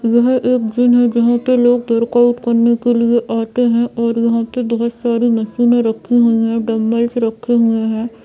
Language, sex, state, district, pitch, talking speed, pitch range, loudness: Hindi, female, Bihar, Saran, 235 Hz, 190 wpm, 230-240 Hz, -14 LUFS